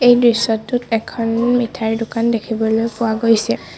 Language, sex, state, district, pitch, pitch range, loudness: Assamese, female, Assam, Sonitpur, 230 Hz, 220-235 Hz, -17 LUFS